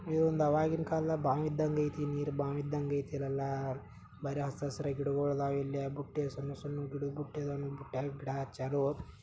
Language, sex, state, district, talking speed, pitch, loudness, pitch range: Kannada, male, Karnataka, Belgaum, 160 wpm, 140 Hz, -35 LUFS, 140-150 Hz